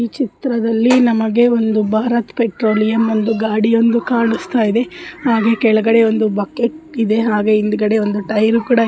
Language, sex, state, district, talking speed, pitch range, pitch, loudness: Kannada, female, Karnataka, Dharwad, 140 wpm, 220-235 Hz, 225 Hz, -15 LUFS